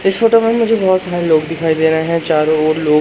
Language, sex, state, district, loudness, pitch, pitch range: Hindi, male, Madhya Pradesh, Umaria, -14 LUFS, 165 Hz, 155-195 Hz